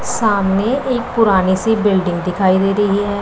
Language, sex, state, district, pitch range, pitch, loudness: Hindi, male, Punjab, Pathankot, 190-225 Hz, 205 Hz, -15 LUFS